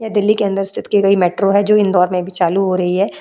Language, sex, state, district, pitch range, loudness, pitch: Hindi, female, Uttar Pradesh, Budaun, 180-205 Hz, -15 LUFS, 195 Hz